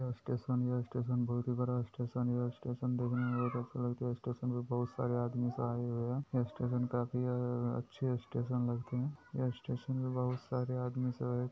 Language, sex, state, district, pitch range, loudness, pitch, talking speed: Hindi, male, Bihar, Purnia, 120-125 Hz, -37 LUFS, 125 Hz, 220 wpm